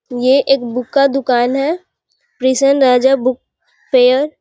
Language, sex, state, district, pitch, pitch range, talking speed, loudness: Hindi, female, Bihar, Muzaffarpur, 265 Hz, 250-275 Hz, 120 wpm, -14 LUFS